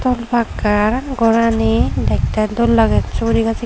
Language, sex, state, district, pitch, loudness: Chakma, female, Tripura, Dhalai, 225 Hz, -16 LUFS